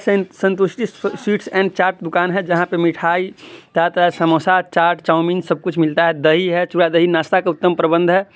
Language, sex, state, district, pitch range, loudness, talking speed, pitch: Hindi, male, Bihar, East Champaran, 170-190 Hz, -17 LUFS, 185 wpm, 175 Hz